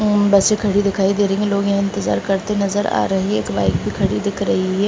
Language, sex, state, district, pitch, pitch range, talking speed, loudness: Hindi, female, Uttar Pradesh, Deoria, 200 Hz, 195-205 Hz, 255 wpm, -18 LUFS